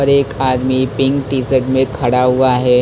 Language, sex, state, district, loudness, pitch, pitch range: Hindi, male, Maharashtra, Mumbai Suburban, -14 LUFS, 130 Hz, 125-135 Hz